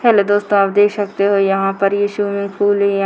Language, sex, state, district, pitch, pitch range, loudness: Hindi, female, Bihar, Purnia, 200 Hz, 200-205 Hz, -15 LUFS